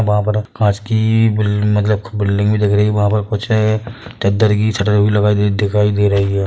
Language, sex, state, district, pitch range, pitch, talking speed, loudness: Hindi, male, Chhattisgarh, Bilaspur, 105-110 Hz, 105 Hz, 205 wpm, -15 LUFS